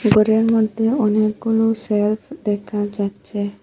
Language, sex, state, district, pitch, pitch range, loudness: Bengali, female, Assam, Hailakandi, 215 Hz, 205-225 Hz, -19 LUFS